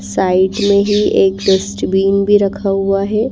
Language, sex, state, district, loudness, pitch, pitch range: Hindi, female, Bihar, Patna, -14 LUFS, 195 Hz, 190-205 Hz